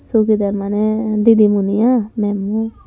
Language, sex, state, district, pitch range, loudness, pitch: Chakma, female, Tripura, Dhalai, 205-220 Hz, -16 LUFS, 215 Hz